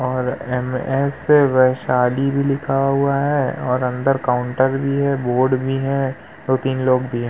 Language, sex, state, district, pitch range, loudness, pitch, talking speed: Hindi, male, Uttar Pradesh, Muzaffarnagar, 125-140 Hz, -19 LUFS, 130 Hz, 155 wpm